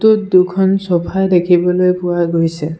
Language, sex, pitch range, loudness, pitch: Assamese, male, 170-190 Hz, -14 LUFS, 180 Hz